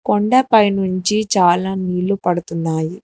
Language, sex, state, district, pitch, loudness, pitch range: Telugu, female, Telangana, Hyderabad, 185 Hz, -16 LUFS, 175-205 Hz